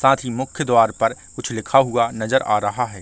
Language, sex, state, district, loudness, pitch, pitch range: Hindi, male, Chhattisgarh, Rajnandgaon, -19 LUFS, 120 Hz, 110-130 Hz